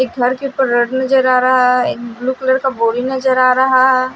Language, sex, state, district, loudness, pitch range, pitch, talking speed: Hindi, female, Odisha, Malkangiri, -14 LUFS, 250-260 Hz, 255 Hz, 245 wpm